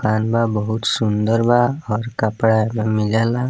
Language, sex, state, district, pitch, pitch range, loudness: Bhojpuri, male, Bihar, East Champaran, 110 Hz, 110-115 Hz, -18 LUFS